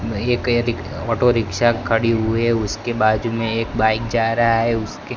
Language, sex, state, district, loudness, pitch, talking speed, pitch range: Hindi, male, Gujarat, Gandhinagar, -19 LUFS, 115 Hz, 185 wpm, 110-120 Hz